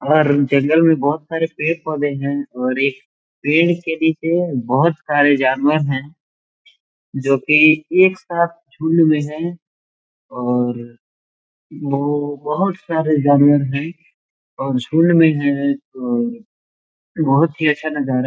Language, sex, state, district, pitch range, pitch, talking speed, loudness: Hindi, male, Chhattisgarh, Korba, 140-165 Hz, 150 Hz, 120 wpm, -17 LUFS